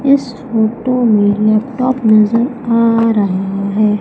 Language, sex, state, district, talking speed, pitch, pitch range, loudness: Hindi, female, Madhya Pradesh, Umaria, 120 wpm, 225 Hz, 210-250 Hz, -13 LUFS